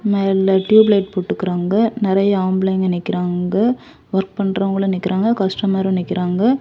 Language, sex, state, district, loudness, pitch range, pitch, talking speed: Tamil, female, Tamil Nadu, Kanyakumari, -17 LUFS, 185-200 Hz, 195 Hz, 110 wpm